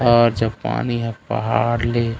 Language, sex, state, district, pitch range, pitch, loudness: Chhattisgarhi, male, Chhattisgarh, Raigarh, 115-120 Hz, 115 Hz, -20 LUFS